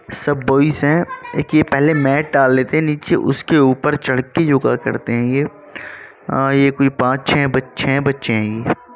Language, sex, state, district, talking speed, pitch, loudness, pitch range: Hindi, male, Uttar Pradesh, Muzaffarnagar, 180 wpm, 140 Hz, -16 LUFS, 130-150 Hz